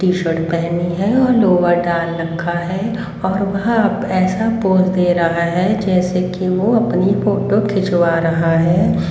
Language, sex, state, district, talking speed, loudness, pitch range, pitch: Hindi, female, Haryana, Rohtak, 165 wpm, -16 LUFS, 170-195 Hz, 185 Hz